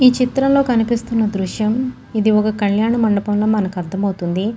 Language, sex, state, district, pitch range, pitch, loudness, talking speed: Telugu, female, Andhra Pradesh, Guntur, 200-235 Hz, 215 Hz, -17 LUFS, 120 wpm